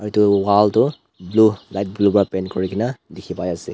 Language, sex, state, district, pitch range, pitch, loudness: Nagamese, male, Nagaland, Dimapur, 95-105 Hz, 100 Hz, -18 LUFS